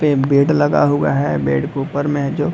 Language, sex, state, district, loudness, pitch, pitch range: Hindi, male, Bihar, Madhepura, -16 LUFS, 140 Hz, 140-145 Hz